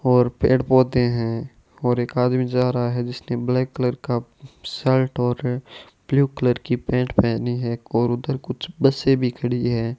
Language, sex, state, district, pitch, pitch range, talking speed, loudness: Hindi, male, Rajasthan, Bikaner, 125 Hz, 120-130 Hz, 175 wpm, -21 LUFS